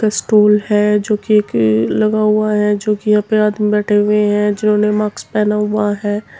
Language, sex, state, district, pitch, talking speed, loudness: Hindi, female, Uttar Pradesh, Muzaffarnagar, 210 Hz, 170 wpm, -14 LUFS